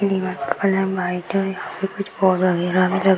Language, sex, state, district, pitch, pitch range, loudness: Hindi, female, Bihar, Samastipur, 190 Hz, 180-195 Hz, -21 LUFS